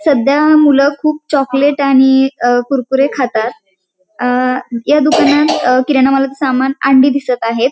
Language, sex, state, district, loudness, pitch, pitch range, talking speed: Marathi, female, Maharashtra, Pune, -12 LUFS, 270 Hz, 250-285 Hz, 130 wpm